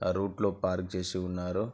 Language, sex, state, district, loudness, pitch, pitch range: Telugu, male, Andhra Pradesh, Anantapur, -32 LUFS, 90 Hz, 90-100 Hz